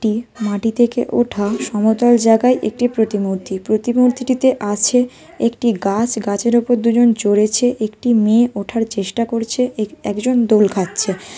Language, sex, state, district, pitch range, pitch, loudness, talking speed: Bengali, female, West Bengal, North 24 Parganas, 210-240 Hz, 225 Hz, -16 LUFS, 140 wpm